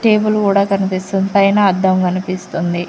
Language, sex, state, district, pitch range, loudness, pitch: Telugu, female, Telangana, Mahabubabad, 185-200 Hz, -15 LUFS, 195 Hz